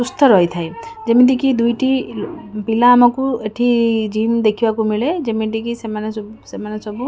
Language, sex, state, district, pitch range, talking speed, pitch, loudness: Odia, female, Odisha, Khordha, 215-245 Hz, 135 wpm, 230 Hz, -16 LUFS